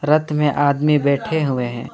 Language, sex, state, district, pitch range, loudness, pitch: Hindi, male, West Bengal, Alipurduar, 140-150 Hz, -18 LUFS, 145 Hz